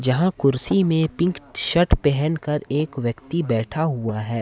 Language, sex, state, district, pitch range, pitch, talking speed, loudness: Hindi, male, Jharkhand, Ranchi, 125-165 Hz, 150 Hz, 165 wpm, -21 LUFS